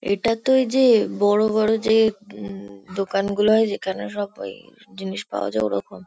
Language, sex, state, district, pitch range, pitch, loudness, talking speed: Bengali, female, West Bengal, Kolkata, 185-220 Hz, 205 Hz, -21 LUFS, 190 wpm